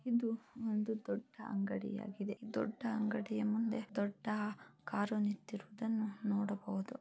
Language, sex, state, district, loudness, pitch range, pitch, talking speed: Kannada, female, Karnataka, Chamarajanagar, -39 LUFS, 205-225 Hz, 215 Hz, 110 wpm